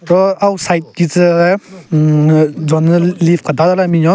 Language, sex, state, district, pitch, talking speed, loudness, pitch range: Rengma, male, Nagaland, Kohima, 170 Hz, 175 wpm, -12 LUFS, 160-180 Hz